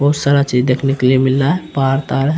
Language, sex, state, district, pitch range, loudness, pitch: Hindi, male, Bihar, Araria, 130-145 Hz, -15 LUFS, 135 Hz